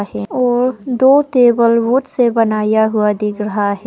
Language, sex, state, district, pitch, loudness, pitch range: Hindi, female, Arunachal Pradesh, Papum Pare, 230 Hz, -14 LUFS, 210-250 Hz